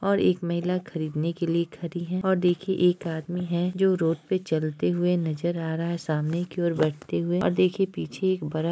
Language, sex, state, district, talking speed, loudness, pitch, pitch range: Hindi, male, Bihar, Araria, 225 wpm, -26 LUFS, 170 Hz, 160-180 Hz